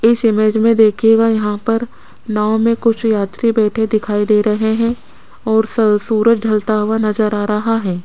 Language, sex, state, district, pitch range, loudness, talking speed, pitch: Hindi, female, Rajasthan, Jaipur, 210-225 Hz, -15 LUFS, 180 wpm, 220 Hz